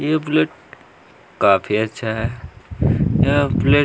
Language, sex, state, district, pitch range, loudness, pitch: Hindi, male, Chhattisgarh, Kabirdham, 105-145 Hz, -19 LUFS, 115 Hz